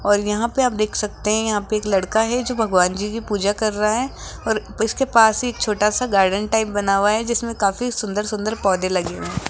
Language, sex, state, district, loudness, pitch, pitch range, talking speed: Hindi, female, Rajasthan, Jaipur, -20 LUFS, 215 Hz, 205-225 Hz, 240 wpm